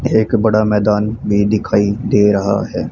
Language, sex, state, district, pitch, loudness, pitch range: Hindi, male, Haryana, Charkhi Dadri, 105 Hz, -15 LUFS, 100-110 Hz